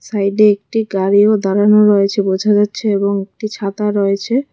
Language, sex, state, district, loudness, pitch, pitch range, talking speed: Bengali, female, Tripura, West Tripura, -14 LUFS, 205 Hz, 200-210 Hz, 145 wpm